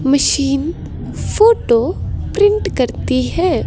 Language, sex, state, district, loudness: Hindi, female, Himachal Pradesh, Shimla, -15 LUFS